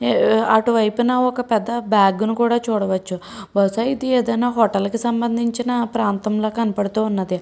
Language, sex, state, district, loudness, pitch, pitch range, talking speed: Telugu, female, Andhra Pradesh, Srikakulam, -19 LUFS, 225 Hz, 205-235 Hz, 130 wpm